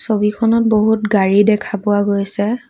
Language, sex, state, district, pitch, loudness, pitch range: Assamese, female, Assam, Kamrup Metropolitan, 210 Hz, -15 LUFS, 205-220 Hz